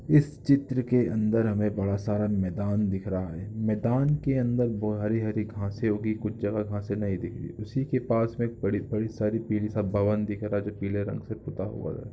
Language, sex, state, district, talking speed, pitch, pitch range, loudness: Hindi, male, Chhattisgarh, Jashpur, 220 wpm, 105 Hz, 100-115 Hz, -28 LUFS